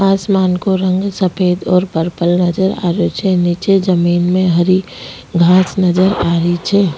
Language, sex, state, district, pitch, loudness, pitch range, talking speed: Rajasthani, female, Rajasthan, Nagaur, 180 Hz, -14 LUFS, 175-190 Hz, 165 wpm